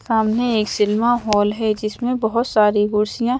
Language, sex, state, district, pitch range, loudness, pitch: Hindi, female, Madhya Pradesh, Bhopal, 210-235 Hz, -18 LUFS, 220 Hz